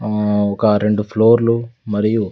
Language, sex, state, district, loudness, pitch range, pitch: Telugu, male, Andhra Pradesh, Sri Satya Sai, -16 LUFS, 105-115 Hz, 105 Hz